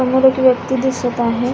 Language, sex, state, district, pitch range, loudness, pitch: Marathi, female, Maharashtra, Pune, 245-260 Hz, -16 LUFS, 255 Hz